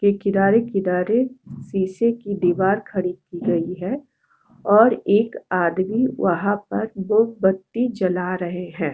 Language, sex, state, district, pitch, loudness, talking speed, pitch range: Hindi, female, Uttarakhand, Tehri Garhwal, 195 Hz, -21 LUFS, 125 wpm, 180-220 Hz